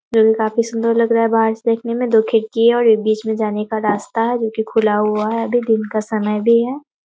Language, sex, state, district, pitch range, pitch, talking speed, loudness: Hindi, female, Bihar, Muzaffarpur, 215-230 Hz, 225 Hz, 270 wpm, -17 LUFS